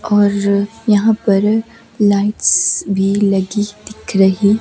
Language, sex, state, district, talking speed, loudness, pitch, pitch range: Hindi, female, Himachal Pradesh, Shimla, 105 wpm, -14 LUFS, 205 Hz, 200-215 Hz